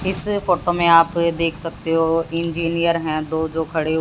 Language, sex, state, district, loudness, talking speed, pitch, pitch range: Hindi, female, Haryana, Jhajjar, -19 LUFS, 180 wpm, 165 Hz, 160-170 Hz